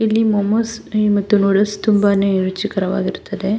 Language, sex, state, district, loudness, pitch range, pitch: Kannada, female, Karnataka, Mysore, -17 LUFS, 195-215 Hz, 205 Hz